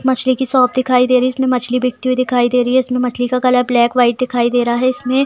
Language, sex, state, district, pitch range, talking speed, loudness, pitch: Hindi, female, Bihar, Purnia, 245-255 Hz, 250 wpm, -15 LUFS, 250 Hz